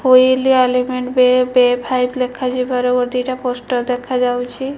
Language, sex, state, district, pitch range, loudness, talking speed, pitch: Odia, female, Odisha, Malkangiri, 250-255 Hz, -16 LUFS, 125 wpm, 250 Hz